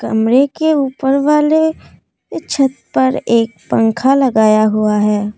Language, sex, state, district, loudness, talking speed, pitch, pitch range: Hindi, female, Assam, Kamrup Metropolitan, -13 LUFS, 125 wpm, 260 Hz, 215-275 Hz